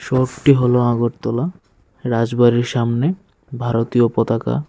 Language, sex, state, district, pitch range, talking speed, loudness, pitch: Bengali, male, Tripura, West Tripura, 120-135 Hz, 90 wpm, -18 LUFS, 120 Hz